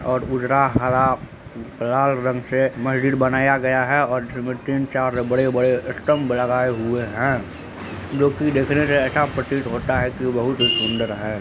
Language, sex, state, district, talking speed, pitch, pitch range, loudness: Hindi, male, Bihar, Begusarai, 160 wpm, 130 Hz, 125-135 Hz, -20 LUFS